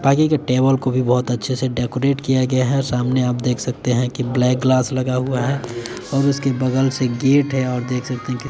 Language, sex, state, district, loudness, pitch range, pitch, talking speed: Hindi, male, Bihar, West Champaran, -19 LUFS, 125-135 Hz, 130 Hz, 245 wpm